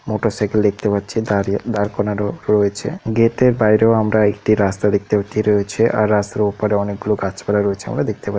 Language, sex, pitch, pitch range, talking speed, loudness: Odia, male, 105 Hz, 100-110 Hz, 180 wpm, -18 LUFS